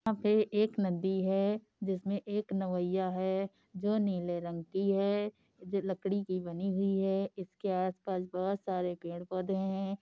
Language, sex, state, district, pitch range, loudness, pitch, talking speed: Hindi, female, Uttar Pradesh, Hamirpur, 185-200 Hz, -34 LUFS, 195 Hz, 180 wpm